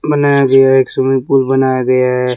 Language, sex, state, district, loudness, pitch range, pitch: Hindi, male, Rajasthan, Bikaner, -11 LUFS, 130-135 Hz, 135 Hz